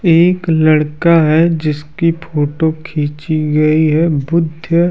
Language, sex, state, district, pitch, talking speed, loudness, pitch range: Hindi, male, Bihar, Kaimur, 160 Hz, 110 wpm, -13 LUFS, 150-165 Hz